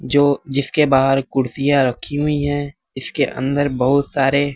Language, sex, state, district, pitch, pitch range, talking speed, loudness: Hindi, male, Bihar, West Champaran, 140 Hz, 135-145 Hz, 145 wpm, -18 LUFS